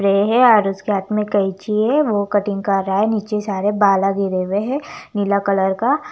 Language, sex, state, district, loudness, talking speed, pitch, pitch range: Hindi, female, Chandigarh, Chandigarh, -18 LUFS, 215 wpm, 205 Hz, 195-215 Hz